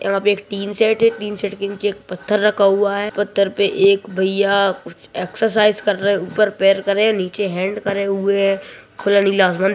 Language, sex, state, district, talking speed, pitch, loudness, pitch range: Hindi, male, Uttarakhand, Uttarkashi, 230 wpm, 200 Hz, -17 LUFS, 195-205 Hz